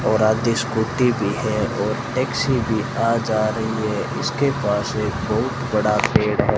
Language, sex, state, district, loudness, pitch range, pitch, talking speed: Hindi, male, Rajasthan, Bikaner, -21 LUFS, 110-125 Hz, 110 Hz, 175 wpm